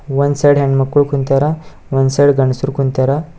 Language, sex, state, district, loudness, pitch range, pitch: Kannada, male, Karnataka, Bidar, -14 LUFS, 135-145 Hz, 140 Hz